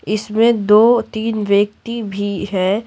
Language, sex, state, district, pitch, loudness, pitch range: Hindi, female, Bihar, Patna, 215 Hz, -16 LUFS, 205-225 Hz